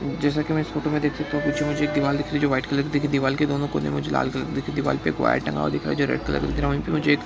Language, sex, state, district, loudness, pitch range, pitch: Hindi, male, Bihar, Bhagalpur, -24 LUFS, 135-150 Hz, 145 Hz